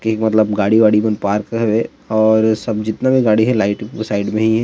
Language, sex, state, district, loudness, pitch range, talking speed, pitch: Chhattisgarhi, male, Chhattisgarh, Rajnandgaon, -16 LUFS, 105-110 Hz, 245 wpm, 110 Hz